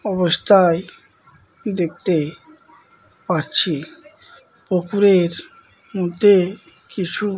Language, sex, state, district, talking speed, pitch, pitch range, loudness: Bengali, male, West Bengal, Malda, 55 wpm, 190 Hz, 175-215 Hz, -18 LUFS